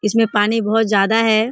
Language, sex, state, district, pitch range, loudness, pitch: Hindi, female, Bihar, Kishanganj, 210-225 Hz, -16 LUFS, 220 Hz